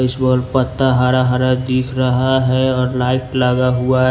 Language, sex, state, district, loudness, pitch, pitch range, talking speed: Hindi, male, Maharashtra, Washim, -16 LUFS, 130 Hz, 125-130 Hz, 190 wpm